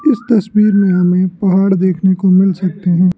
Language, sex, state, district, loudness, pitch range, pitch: Hindi, male, Arunachal Pradesh, Lower Dibang Valley, -12 LUFS, 185-200 Hz, 190 Hz